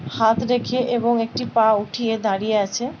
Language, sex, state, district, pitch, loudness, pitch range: Bengali, female, West Bengal, Paschim Medinipur, 230 Hz, -20 LUFS, 220-240 Hz